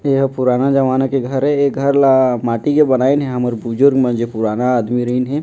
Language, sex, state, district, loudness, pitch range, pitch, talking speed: Chhattisgarhi, male, Chhattisgarh, Jashpur, -15 LUFS, 125-140 Hz, 130 Hz, 245 wpm